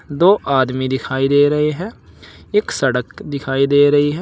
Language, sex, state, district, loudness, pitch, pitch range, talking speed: Hindi, male, Uttar Pradesh, Saharanpur, -16 LUFS, 145 Hz, 135-150 Hz, 170 wpm